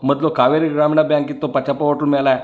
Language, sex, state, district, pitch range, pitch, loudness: Kannada, male, Karnataka, Chamarajanagar, 140-150 Hz, 145 Hz, -17 LUFS